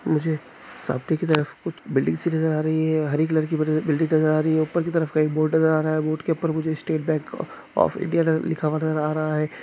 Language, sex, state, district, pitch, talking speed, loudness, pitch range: Hindi, male, Andhra Pradesh, Srikakulam, 155 Hz, 250 wpm, -23 LUFS, 155-160 Hz